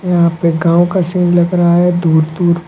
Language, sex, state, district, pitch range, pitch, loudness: Hindi, male, Uttar Pradesh, Lucknow, 170-175 Hz, 175 Hz, -12 LUFS